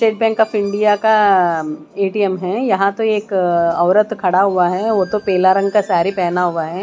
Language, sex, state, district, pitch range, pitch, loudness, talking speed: Hindi, female, Maharashtra, Mumbai Suburban, 180-210 Hz, 195 Hz, -15 LUFS, 200 wpm